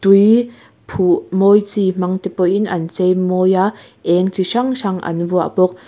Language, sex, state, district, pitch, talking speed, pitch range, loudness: Mizo, female, Mizoram, Aizawl, 190 Hz, 195 wpm, 180-200 Hz, -16 LUFS